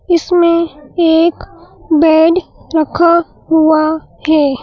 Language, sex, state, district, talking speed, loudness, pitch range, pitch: Hindi, female, Madhya Pradesh, Bhopal, 80 wpm, -12 LUFS, 315-340 Hz, 320 Hz